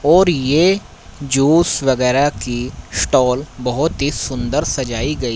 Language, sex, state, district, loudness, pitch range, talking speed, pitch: Hindi, male, Haryana, Rohtak, -17 LUFS, 125-155 Hz, 125 wpm, 135 Hz